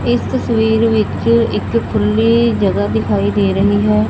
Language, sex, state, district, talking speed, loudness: Punjabi, female, Punjab, Fazilka, 145 wpm, -14 LUFS